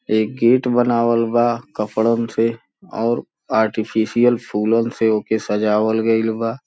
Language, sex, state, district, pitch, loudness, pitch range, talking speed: Bhojpuri, male, Uttar Pradesh, Gorakhpur, 115 Hz, -18 LUFS, 110-120 Hz, 125 wpm